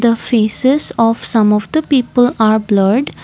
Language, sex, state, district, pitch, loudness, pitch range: English, female, Assam, Kamrup Metropolitan, 230 Hz, -13 LUFS, 220-260 Hz